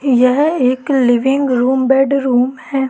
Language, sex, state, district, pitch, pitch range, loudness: Hindi, female, Madhya Pradesh, Katni, 265 Hz, 255-275 Hz, -14 LUFS